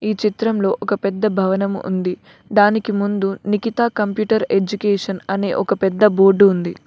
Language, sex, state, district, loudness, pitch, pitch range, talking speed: Telugu, female, Telangana, Mahabubabad, -18 LUFS, 200 Hz, 195-210 Hz, 140 wpm